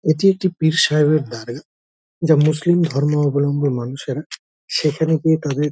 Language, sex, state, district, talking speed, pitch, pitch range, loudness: Bengali, male, West Bengal, Dakshin Dinajpur, 135 wpm, 150 Hz, 140-160 Hz, -18 LUFS